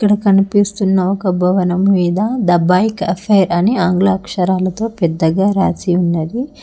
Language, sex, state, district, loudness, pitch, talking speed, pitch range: Telugu, female, Telangana, Hyderabad, -14 LUFS, 190 Hz, 125 wpm, 180-205 Hz